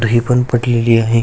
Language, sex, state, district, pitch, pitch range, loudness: Marathi, male, Maharashtra, Aurangabad, 115 Hz, 115-120 Hz, -14 LUFS